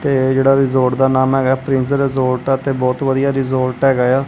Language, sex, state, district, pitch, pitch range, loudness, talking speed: Punjabi, male, Punjab, Kapurthala, 135 Hz, 130-135 Hz, -15 LUFS, 195 wpm